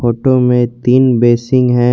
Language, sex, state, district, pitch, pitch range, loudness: Hindi, male, Jharkhand, Garhwa, 125 Hz, 120-125 Hz, -12 LUFS